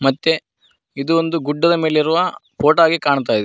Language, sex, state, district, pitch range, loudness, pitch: Kannada, male, Karnataka, Koppal, 145-165 Hz, -17 LUFS, 160 Hz